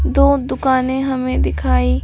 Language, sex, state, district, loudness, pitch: Hindi, female, Delhi, New Delhi, -17 LUFS, 255 Hz